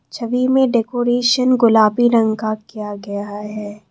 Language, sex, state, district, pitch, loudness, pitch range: Hindi, female, Assam, Kamrup Metropolitan, 225 Hz, -17 LUFS, 210-245 Hz